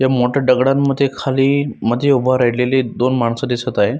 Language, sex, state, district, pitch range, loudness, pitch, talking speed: Marathi, male, Maharashtra, Solapur, 125-135 Hz, -16 LUFS, 130 Hz, 165 wpm